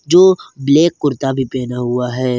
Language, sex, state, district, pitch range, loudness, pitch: Hindi, male, Jharkhand, Garhwa, 125-155 Hz, -15 LUFS, 135 Hz